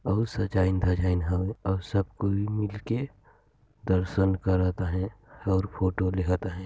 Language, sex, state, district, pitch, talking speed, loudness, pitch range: Hindi, male, Chhattisgarh, Sarguja, 95 Hz, 135 wpm, -28 LUFS, 95-110 Hz